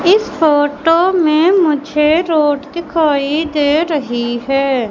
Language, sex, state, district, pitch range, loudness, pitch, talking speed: Hindi, male, Madhya Pradesh, Katni, 285-330 Hz, -14 LUFS, 305 Hz, 110 wpm